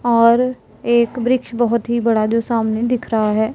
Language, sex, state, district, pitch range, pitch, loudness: Hindi, female, Punjab, Pathankot, 230-240 Hz, 235 Hz, -17 LUFS